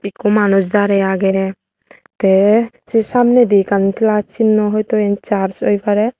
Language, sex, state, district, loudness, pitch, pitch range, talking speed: Chakma, female, Tripura, West Tripura, -14 LUFS, 205 Hz, 195-220 Hz, 145 wpm